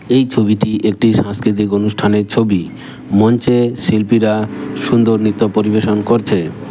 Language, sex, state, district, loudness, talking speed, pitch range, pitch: Bengali, male, West Bengal, Cooch Behar, -14 LUFS, 105 wpm, 105-120 Hz, 110 Hz